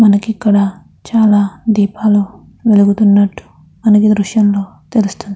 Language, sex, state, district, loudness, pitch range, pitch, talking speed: Telugu, female, Andhra Pradesh, Krishna, -12 LUFS, 200-215 Hz, 205 Hz, 100 wpm